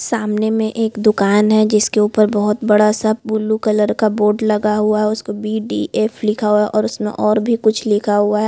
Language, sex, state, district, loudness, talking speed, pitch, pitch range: Hindi, female, Chhattisgarh, Bilaspur, -16 LUFS, 225 wpm, 215 Hz, 210-220 Hz